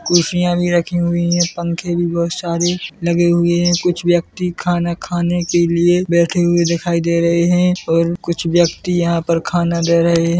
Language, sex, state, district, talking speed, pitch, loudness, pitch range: Hindi, male, Chhattisgarh, Korba, 190 wpm, 170 Hz, -16 LUFS, 170-175 Hz